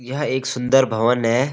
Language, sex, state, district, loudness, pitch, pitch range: Hindi, male, Uttarakhand, Uttarkashi, -19 LUFS, 125 Hz, 120-135 Hz